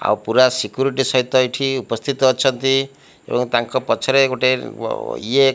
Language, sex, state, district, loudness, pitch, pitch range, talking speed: Odia, male, Odisha, Malkangiri, -18 LUFS, 130 Hz, 125-135 Hz, 150 wpm